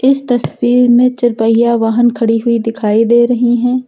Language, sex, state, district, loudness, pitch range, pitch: Hindi, female, Uttar Pradesh, Lucknow, -12 LUFS, 230-245 Hz, 240 Hz